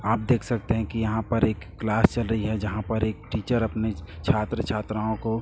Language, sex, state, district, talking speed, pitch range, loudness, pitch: Hindi, male, Chhattisgarh, Raipur, 220 wpm, 105-115 Hz, -26 LUFS, 110 Hz